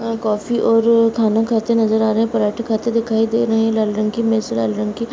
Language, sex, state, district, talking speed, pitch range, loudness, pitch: Hindi, female, Uttar Pradesh, Muzaffarnagar, 270 wpm, 220-230 Hz, -17 LUFS, 225 Hz